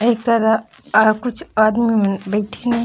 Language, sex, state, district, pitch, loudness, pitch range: Chhattisgarhi, female, Chhattisgarh, Raigarh, 220 Hz, -17 LUFS, 215-235 Hz